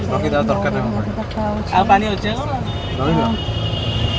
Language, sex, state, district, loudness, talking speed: Odia, female, Odisha, Khordha, -19 LUFS, 215 wpm